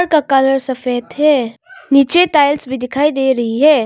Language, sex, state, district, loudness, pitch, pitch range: Hindi, female, Arunachal Pradesh, Longding, -14 LUFS, 275 Hz, 260-300 Hz